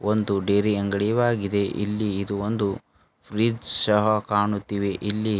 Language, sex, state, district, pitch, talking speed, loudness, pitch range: Kannada, male, Karnataka, Bidar, 105 Hz, 110 wpm, -22 LUFS, 100-105 Hz